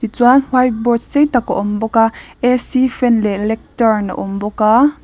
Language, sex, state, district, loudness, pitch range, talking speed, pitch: Mizo, female, Mizoram, Aizawl, -15 LUFS, 220-255 Hz, 215 wpm, 235 Hz